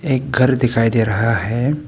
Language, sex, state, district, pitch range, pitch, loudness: Hindi, male, Arunachal Pradesh, Papum Pare, 115-130 Hz, 125 Hz, -17 LUFS